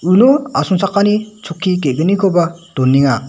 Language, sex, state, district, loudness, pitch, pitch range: Garo, male, Meghalaya, West Garo Hills, -14 LUFS, 185 Hz, 160-200 Hz